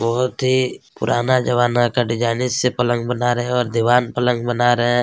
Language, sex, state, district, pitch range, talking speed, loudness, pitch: Hindi, male, Chhattisgarh, Kabirdham, 120-125 Hz, 205 wpm, -18 LUFS, 120 Hz